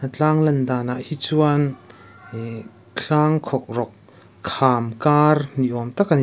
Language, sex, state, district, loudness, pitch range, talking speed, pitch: Mizo, male, Mizoram, Aizawl, -20 LUFS, 115-150 Hz, 155 wpm, 130 Hz